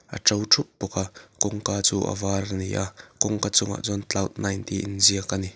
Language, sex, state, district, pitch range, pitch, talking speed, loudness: Mizo, male, Mizoram, Aizawl, 95-100 Hz, 100 Hz, 225 wpm, -24 LUFS